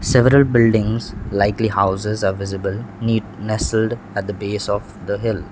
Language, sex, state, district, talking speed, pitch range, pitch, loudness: English, male, Sikkim, Gangtok, 150 wpm, 100-115 Hz, 105 Hz, -19 LUFS